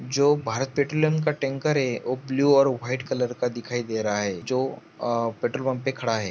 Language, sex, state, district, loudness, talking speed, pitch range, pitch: Hindi, male, Jharkhand, Sahebganj, -25 LUFS, 220 wpm, 120-140 Hz, 130 Hz